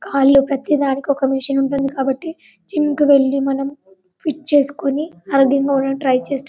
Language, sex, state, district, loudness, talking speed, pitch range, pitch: Telugu, female, Telangana, Karimnagar, -17 LUFS, 150 wpm, 270-285 Hz, 275 Hz